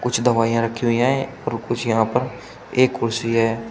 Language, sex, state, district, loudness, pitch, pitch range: Hindi, male, Uttar Pradesh, Shamli, -20 LUFS, 115 Hz, 115-125 Hz